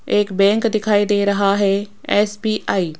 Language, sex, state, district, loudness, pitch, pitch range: Hindi, female, Rajasthan, Jaipur, -18 LUFS, 205 Hz, 200-210 Hz